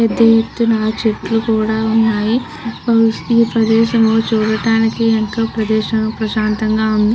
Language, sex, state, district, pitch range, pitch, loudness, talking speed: Telugu, female, Andhra Pradesh, Krishna, 220-225 Hz, 225 Hz, -15 LUFS, 90 wpm